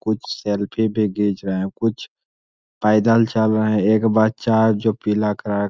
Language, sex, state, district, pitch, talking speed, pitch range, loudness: Hindi, male, Bihar, Jamui, 105 Hz, 190 wpm, 100-110 Hz, -19 LUFS